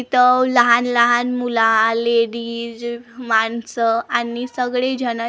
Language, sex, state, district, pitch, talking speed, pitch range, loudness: Marathi, female, Maharashtra, Gondia, 235 Hz, 125 wpm, 230-245 Hz, -17 LUFS